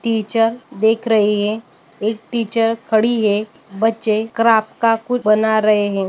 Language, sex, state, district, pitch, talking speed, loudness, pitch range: Hindi, female, Maharashtra, Sindhudurg, 220 Hz, 150 wpm, -17 LUFS, 215-230 Hz